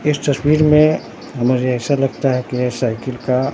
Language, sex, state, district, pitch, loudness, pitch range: Hindi, male, Bihar, Katihar, 130 Hz, -17 LUFS, 125-145 Hz